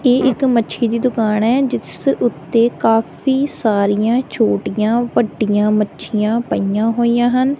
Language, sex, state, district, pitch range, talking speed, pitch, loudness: Punjabi, female, Punjab, Kapurthala, 215-250 Hz, 125 wpm, 230 Hz, -16 LUFS